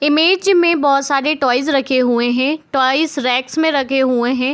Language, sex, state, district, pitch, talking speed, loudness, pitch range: Hindi, female, Bihar, Gopalganj, 275 Hz, 185 wpm, -15 LUFS, 255-305 Hz